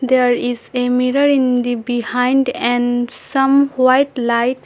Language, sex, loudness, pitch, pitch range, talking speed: English, female, -16 LUFS, 250 Hz, 245-265 Hz, 140 wpm